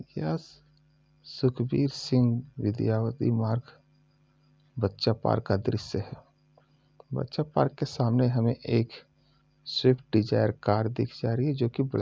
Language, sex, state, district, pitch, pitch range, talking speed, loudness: Hindi, male, Uttar Pradesh, Muzaffarnagar, 130 Hz, 115-145 Hz, 125 wpm, -28 LUFS